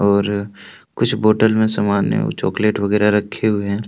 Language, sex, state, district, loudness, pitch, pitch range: Hindi, male, Jharkhand, Deoghar, -17 LUFS, 105 Hz, 100-110 Hz